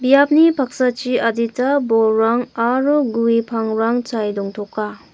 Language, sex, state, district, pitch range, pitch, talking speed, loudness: Garo, female, Meghalaya, West Garo Hills, 225-255 Hz, 235 Hz, 105 wpm, -17 LUFS